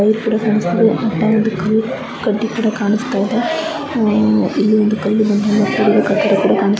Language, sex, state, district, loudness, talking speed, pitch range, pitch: Kannada, female, Karnataka, Bijapur, -15 LUFS, 140 wpm, 205-220 Hz, 215 Hz